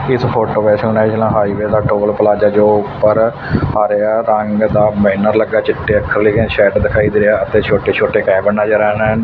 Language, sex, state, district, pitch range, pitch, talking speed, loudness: Punjabi, male, Punjab, Fazilka, 105-110 Hz, 105 Hz, 195 wpm, -13 LUFS